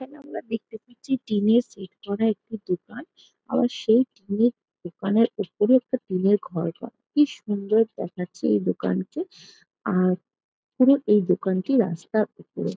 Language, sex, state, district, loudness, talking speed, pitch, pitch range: Bengali, female, West Bengal, Jalpaiguri, -24 LUFS, 130 wpm, 215 Hz, 185-245 Hz